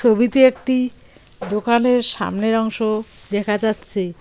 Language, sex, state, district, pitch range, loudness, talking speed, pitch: Bengali, female, West Bengal, Cooch Behar, 210-245 Hz, -19 LUFS, 100 wpm, 225 Hz